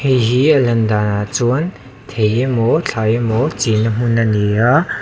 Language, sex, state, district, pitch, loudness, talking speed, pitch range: Mizo, male, Mizoram, Aizawl, 115 Hz, -15 LUFS, 180 wpm, 110-130 Hz